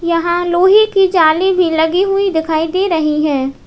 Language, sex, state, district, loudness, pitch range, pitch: Hindi, female, Uttar Pradesh, Lalitpur, -13 LUFS, 320-380 Hz, 340 Hz